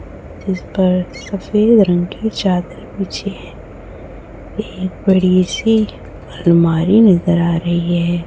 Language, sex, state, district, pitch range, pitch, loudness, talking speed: Hindi, female, Chhattisgarh, Raipur, 170-195 Hz, 180 Hz, -15 LUFS, 115 wpm